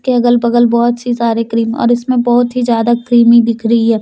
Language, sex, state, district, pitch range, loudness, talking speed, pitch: Hindi, female, Jharkhand, Deoghar, 230-240 Hz, -12 LUFS, 240 wpm, 235 Hz